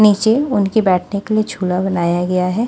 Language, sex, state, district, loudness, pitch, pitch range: Hindi, female, Haryana, Jhajjar, -16 LUFS, 200 Hz, 180-215 Hz